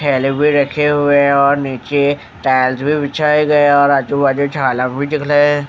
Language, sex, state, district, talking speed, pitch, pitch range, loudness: Hindi, male, Haryana, Jhajjar, 190 wpm, 140 Hz, 140-145 Hz, -14 LUFS